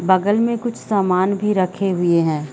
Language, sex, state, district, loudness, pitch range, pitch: Hindi, female, Chhattisgarh, Bilaspur, -18 LUFS, 175-205 Hz, 190 Hz